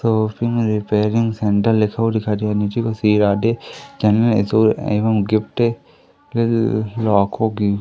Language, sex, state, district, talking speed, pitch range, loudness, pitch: Hindi, male, Madhya Pradesh, Katni, 100 wpm, 105-115 Hz, -18 LUFS, 110 Hz